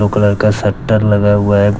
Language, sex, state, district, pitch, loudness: Hindi, male, Jharkhand, Deoghar, 105 Hz, -12 LUFS